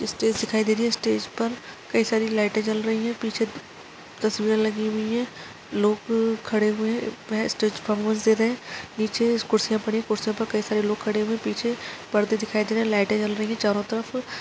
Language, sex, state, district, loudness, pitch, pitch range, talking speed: Hindi, female, Chhattisgarh, Kabirdham, -25 LUFS, 220 Hz, 215-225 Hz, 190 wpm